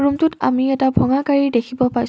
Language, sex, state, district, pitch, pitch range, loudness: Assamese, female, Assam, Kamrup Metropolitan, 265 Hz, 255-280 Hz, -17 LUFS